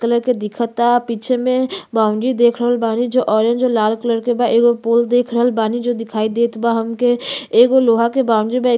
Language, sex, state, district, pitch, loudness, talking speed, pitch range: Bhojpuri, female, Uttar Pradesh, Gorakhpur, 235 Hz, -16 LUFS, 225 wpm, 230-245 Hz